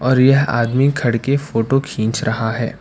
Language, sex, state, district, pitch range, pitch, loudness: Hindi, male, Karnataka, Bangalore, 115-140 Hz, 125 Hz, -17 LUFS